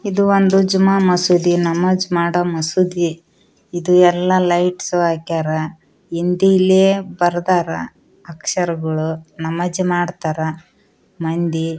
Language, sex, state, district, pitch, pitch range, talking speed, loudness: Kannada, female, Karnataka, Raichur, 175 Hz, 165-185 Hz, 85 wpm, -17 LUFS